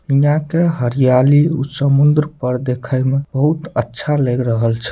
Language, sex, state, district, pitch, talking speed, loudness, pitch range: Maithili, male, Bihar, Samastipur, 140 Hz, 160 wpm, -16 LUFS, 125-150 Hz